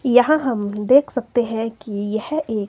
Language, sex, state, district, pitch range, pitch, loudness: Hindi, female, Himachal Pradesh, Shimla, 210-255 Hz, 230 Hz, -19 LUFS